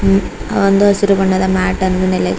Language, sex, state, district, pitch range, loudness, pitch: Kannada, female, Karnataka, Bidar, 185-195 Hz, -14 LUFS, 190 Hz